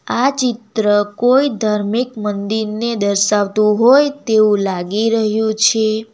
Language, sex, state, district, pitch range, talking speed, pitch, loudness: Gujarati, female, Gujarat, Valsad, 210-235 Hz, 110 wpm, 220 Hz, -15 LUFS